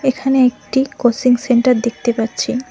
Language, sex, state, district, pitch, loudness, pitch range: Bengali, female, West Bengal, Cooch Behar, 250 Hz, -16 LUFS, 235-265 Hz